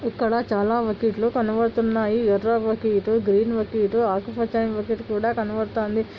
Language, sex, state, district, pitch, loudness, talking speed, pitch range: Telugu, female, Andhra Pradesh, Anantapur, 225 Hz, -23 LUFS, 115 wpm, 215-230 Hz